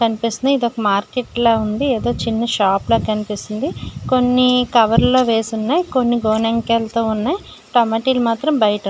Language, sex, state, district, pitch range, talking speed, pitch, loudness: Telugu, female, Andhra Pradesh, Srikakulam, 220-250 Hz, 170 wpm, 230 Hz, -17 LUFS